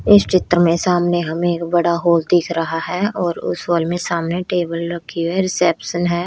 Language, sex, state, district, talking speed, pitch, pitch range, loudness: Hindi, female, Haryana, Rohtak, 200 wpm, 175 Hz, 170-175 Hz, -18 LUFS